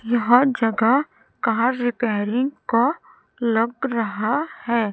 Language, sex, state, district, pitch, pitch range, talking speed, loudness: Hindi, female, Chhattisgarh, Raipur, 235 Hz, 225-260 Hz, 95 wpm, -21 LUFS